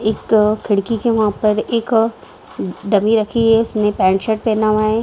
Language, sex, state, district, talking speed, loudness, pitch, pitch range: Hindi, female, Bihar, Samastipur, 190 wpm, -16 LUFS, 215 Hz, 210-225 Hz